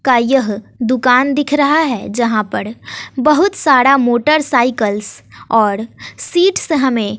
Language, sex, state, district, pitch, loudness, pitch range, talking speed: Hindi, female, Bihar, West Champaran, 255 Hz, -14 LUFS, 230-290 Hz, 115 wpm